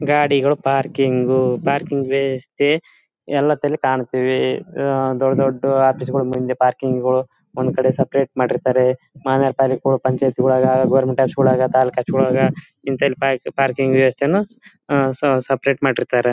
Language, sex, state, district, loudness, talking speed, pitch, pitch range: Kannada, male, Karnataka, Bellary, -18 LUFS, 120 wpm, 135 Hz, 130-140 Hz